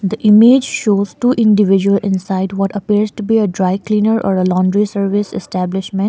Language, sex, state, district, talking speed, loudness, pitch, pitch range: English, female, Sikkim, Gangtok, 175 wpm, -14 LUFS, 200 Hz, 195-215 Hz